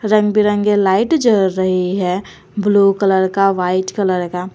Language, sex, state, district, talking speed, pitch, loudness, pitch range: Hindi, female, Jharkhand, Garhwa, 160 wpm, 195 Hz, -15 LUFS, 185-205 Hz